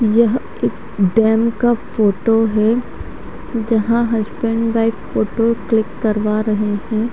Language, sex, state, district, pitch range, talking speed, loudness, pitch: Hindi, female, Haryana, Charkhi Dadri, 215-230 Hz, 120 wpm, -17 LUFS, 225 Hz